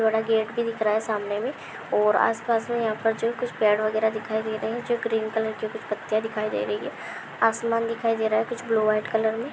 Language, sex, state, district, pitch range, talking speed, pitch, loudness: Hindi, female, Chhattisgarh, Raigarh, 215-230 Hz, 265 wpm, 220 Hz, -25 LUFS